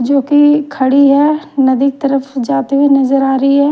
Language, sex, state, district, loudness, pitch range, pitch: Hindi, female, Haryana, Jhajjar, -11 LUFS, 270-285 Hz, 275 Hz